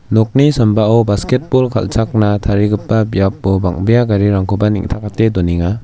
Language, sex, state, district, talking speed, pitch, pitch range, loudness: Garo, male, Meghalaya, South Garo Hills, 105 wpm, 105 Hz, 100-115 Hz, -14 LUFS